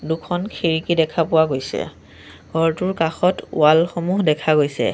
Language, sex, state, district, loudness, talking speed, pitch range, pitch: Assamese, male, Assam, Sonitpur, -19 LUFS, 120 wpm, 150-170 Hz, 160 Hz